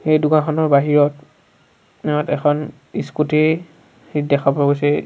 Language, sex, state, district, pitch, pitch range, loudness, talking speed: Assamese, male, Assam, Sonitpur, 150 Hz, 145-155 Hz, -18 LUFS, 120 wpm